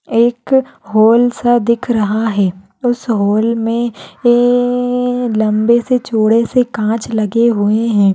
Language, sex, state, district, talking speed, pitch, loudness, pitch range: Hindi, female, Maharashtra, Solapur, 120 wpm, 230 Hz, -14 LUFS, 215-240 Hz